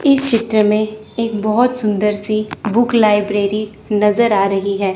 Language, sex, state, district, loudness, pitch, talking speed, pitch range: Hindi, female, Chandigarh, Chandigarh, -16 LUFS, 215 Hz, 160 wpm, 205-230 Hz